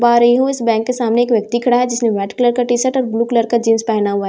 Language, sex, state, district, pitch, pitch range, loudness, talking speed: Hindi, female, Bihar, Katihar, 235 Hz, 225-245 Hz, -15 LUFS, 350 wpm